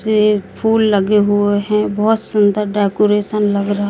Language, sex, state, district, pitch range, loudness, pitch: Hindi, female, Madhya Pradesh, Katni, 205-210 Hz, -15 LUFS, 210 Hz